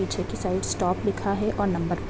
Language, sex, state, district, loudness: Hindi, female, Bihar, Sitamarhi, -26 LUFS